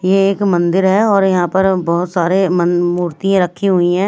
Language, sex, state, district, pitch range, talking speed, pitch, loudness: Hindi, female, Delhi, New Delhi, 175-195 Hz, 175 wpm, 185 Hz, -14 LUFS